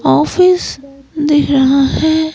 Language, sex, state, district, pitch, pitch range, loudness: Hindi, female, Himachal Pradesh, Shimla, 295 Hz, 275-315 Hz, -12 LUFS